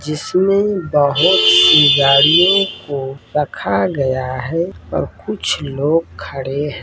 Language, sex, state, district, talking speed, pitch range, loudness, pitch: Hindi, male, Uttar Pradesh, Ghazipur, 115 wpm, 135-165 Hz, -14 LUFS, 145 Hz